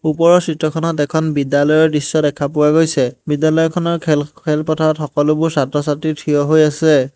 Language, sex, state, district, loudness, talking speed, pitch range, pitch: Assamese, male, Assam, Hailakandi, -15 LUFS, 140 wpm, 145-160 Hz, 155 Hz